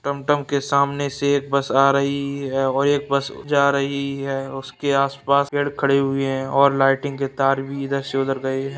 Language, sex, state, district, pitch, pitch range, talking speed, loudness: Hindi, male, Bihar, Purnia, 140 Hz, 135-140 Hz, 210 wpm, -20 LUFS